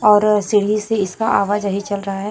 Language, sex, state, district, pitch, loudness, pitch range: Hindi, female, Chhattisgarh, Raipur, 205 Hz, -18 LUFS, 200-210 Hz